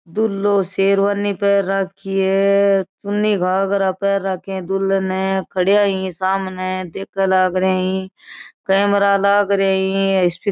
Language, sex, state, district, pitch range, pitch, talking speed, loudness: Marwari, female, Rajasthan, Nagaur, 190-200 Hz, 195 Hz, 120 wpm, -18 LUFS